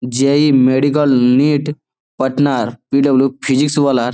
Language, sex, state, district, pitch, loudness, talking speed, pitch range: Bengali, male, West Bengal, Malda, 135 Hz, -14 LUFS, 115 wpm, 130-145 Hz